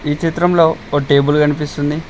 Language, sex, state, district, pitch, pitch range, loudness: Telugu, male, Telangana, Mahabubabad, 150 Hz, 145-160 Hz, -15 LUFS